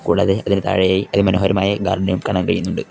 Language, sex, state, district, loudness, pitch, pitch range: Malayalam, male, Kerala, Kollam, -17 LUFS, 95 Hz, 95-100 Hz